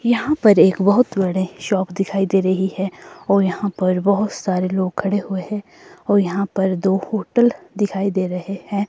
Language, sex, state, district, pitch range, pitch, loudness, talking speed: Hindi, female, Himachal Pradesh, Shimla, 190-205 Hz, 195 Hz, -19 LUFS, 190 wpm